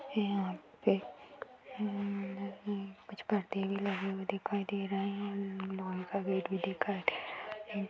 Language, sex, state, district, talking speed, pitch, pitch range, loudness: Hindi, female, Uttar Pradesh, Jyotiba Phule Nagar, 160 wpm, 200 Hz, 190-200 Hz, -37 LUFS